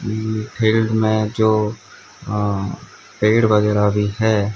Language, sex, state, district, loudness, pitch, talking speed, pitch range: Hindi, male, Odisha, Sambalpur, -18 LUFS, 110 Hz, 105 wpm, 105-110 Hz